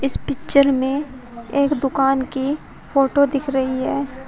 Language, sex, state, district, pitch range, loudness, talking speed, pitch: Hindi, female, Uttar Pradesh, Shamli, 265-280 Hz, -19 LUFS, 140 wpm, 275 Hz